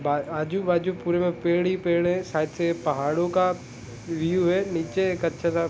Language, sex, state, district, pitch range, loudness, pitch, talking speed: Hindi, male, Jharkhand, Sahebganj, 155-180 Hz, -25 LUFS, 170 Hz, 200 wpm